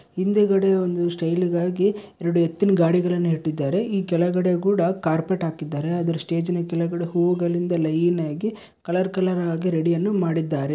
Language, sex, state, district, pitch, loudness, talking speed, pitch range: Kannada, male, Karnataka, Bellary, 175 Hz, -22 LUFS, 140 wpm, 170-185 Hz